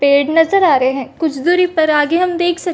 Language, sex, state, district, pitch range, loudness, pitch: Hindi, female, Chhattisgarh, Rajnandgaon, 295-355 Hz, -14 LUFS, 325 Hz